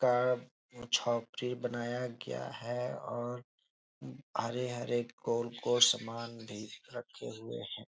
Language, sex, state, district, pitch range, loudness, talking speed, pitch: Hindi, male, Bihar, Jahanabad, 115-125 Hz, -35 LUFS, 105 wpm, 120 Hz